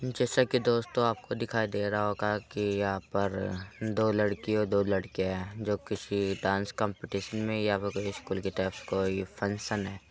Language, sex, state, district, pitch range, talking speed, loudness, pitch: Hindi, male, Uttar Pradesh, Muzaffarnagar, 100-110 Hz, 190 wpm, -31 LUFS, 100 Hz